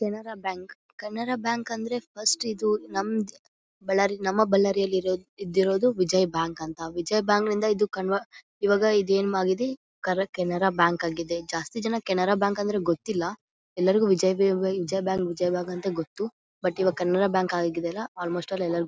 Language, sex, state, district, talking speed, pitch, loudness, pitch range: Kannada, female, Karnataka, Bellary, 165 wpm, 190 Hz, -26 LUFS, 180-210 Hz